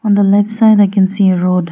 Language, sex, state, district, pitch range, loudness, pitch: English, female, Arunachal Pradesh, Lower Dibang Valley, 190-205 Hz, -11 LUFS, 200 Hz